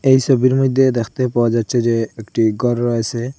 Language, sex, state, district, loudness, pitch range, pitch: Bengali, male, Assam, Hailakandi, -17 LUFS, 115-130 Hz, 120 Hz